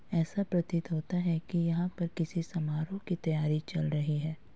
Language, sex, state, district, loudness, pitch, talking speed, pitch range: Hindi, female, Uttar Pradesh, Muzaffarnagar, -33 LUFS, 165 Hz, 185 wpm, 155-175 Hz